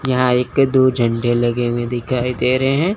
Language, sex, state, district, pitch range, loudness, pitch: Hindi, male, Chandigarh, Chandigarh, 120-130 Hz, -17 LUFS, 125 Hz